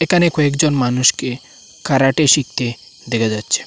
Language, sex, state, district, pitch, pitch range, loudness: Bengali, male, Assam, Hailakandi, 135 Hz, 120-150 Hz, -16 LUFS